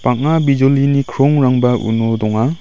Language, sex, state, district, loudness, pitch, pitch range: Garo, male, Meghalaya, West Garo Hills, -14 LUFS, 135 Hz, 120-140 Hz